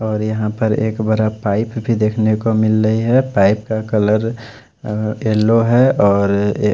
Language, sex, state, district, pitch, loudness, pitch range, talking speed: Hindi, male, Odisha, Khordha, 110 Hz, -16 LUFS, 105-115 Hz, 170 wpm